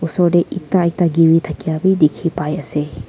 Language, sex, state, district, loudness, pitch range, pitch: Nagamese, female, Nagaland, Kohima, -16 LUFS, 155-175 Hz, 165 Hz